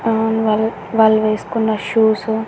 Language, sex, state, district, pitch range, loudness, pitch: Telugu, female, Andhra Pradesh, Annamaya, 215-225 Hz, -16 LUFS, 220 Hz